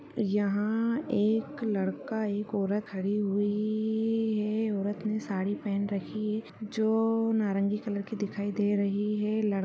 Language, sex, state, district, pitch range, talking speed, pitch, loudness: Hindi, female, Bihar, Bhagalpur, 205-220 Hz, 160 wpm, 210 Hz, -30 LUFS